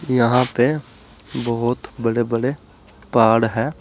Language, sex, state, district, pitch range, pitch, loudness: Hindi, male, Uttar Pradesh, Saharanpur, 115-125 Hz, 120 Hz, -19 LUFS